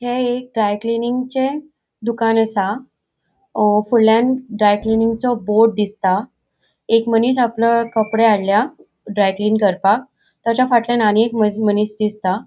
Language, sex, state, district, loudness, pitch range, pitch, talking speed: Konkani, female, Goa, North and South Goa, -17 LUFS, 210-245 Hz, 225 Hz, 130 wpm